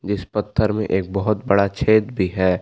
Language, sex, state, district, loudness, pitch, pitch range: Hindi, male, Jharkhand, Palamu, -20 LUFS, 100 Hz, 95-110 Hz